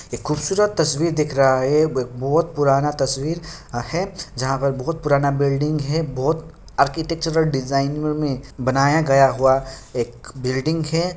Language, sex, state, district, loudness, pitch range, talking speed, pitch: Hindi, male, Bihar, Kishanganj, -20 LUFS, 135-160 Hz, 140 wpm, 145 Hz